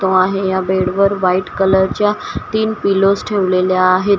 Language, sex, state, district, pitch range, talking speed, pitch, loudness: Marathi, female, Maharashtra, Washim, 185-200 Hz, 145 wpm, 190 Hz, -15 LUFS